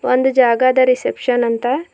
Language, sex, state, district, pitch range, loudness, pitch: Kannada, female, Karnataka, Bidar, 245-260 Hz, -15 LUFS, 255 Hz